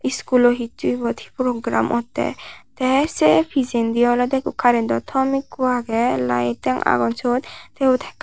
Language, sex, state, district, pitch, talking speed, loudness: Chakma, male, Tripura, Unakoti, 240 Hz, 140 wpm, -20 LUFS